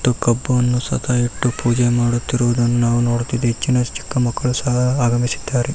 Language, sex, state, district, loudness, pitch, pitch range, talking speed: Kannada, male, Karnataka, Raichur, -18 LUFS, 120 Hz, 120-125 Hz, 135 wpm